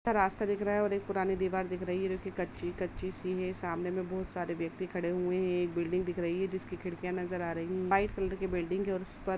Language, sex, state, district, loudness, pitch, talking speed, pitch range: Hindi, female, Uttar Pradesh, Jalaun, -34 LUFS, 185 Hz, 270 wpm, 180-190 Hz